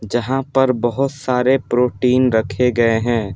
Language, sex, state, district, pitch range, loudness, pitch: Hindi, male, Bihar, Patna, 120-130 Hz, -17 LUFS, 125 Hz